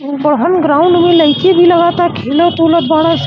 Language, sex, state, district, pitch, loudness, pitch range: Bhojpuri, male, Uttar Pradesh, Gorakhpur, 335 Hz, -10 LUFS, 300-345 Hz